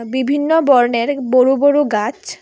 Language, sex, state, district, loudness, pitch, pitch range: Bengali, female, Tripura, West Tripura, -14 LUFS, 260 Hz, 245-285 Hz